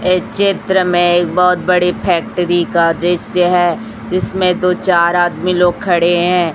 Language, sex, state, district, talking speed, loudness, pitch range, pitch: Hindi, female, Chhattisgarh, Raipur, 155 wpm, -13 LUFS, 175-185 Hz, 180 Hz